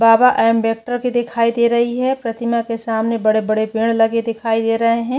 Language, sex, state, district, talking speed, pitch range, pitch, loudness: Hindi, female, Chhattisgarh, Kabirdham, 220 wpm, 225-235 Hz, 230 Hz, -17 LUFS